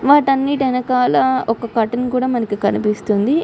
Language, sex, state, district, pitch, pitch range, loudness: Telugu, female, Andhra Pradesh, Chittoor, 250 Hz, 225-265 Hz, -17 LUFS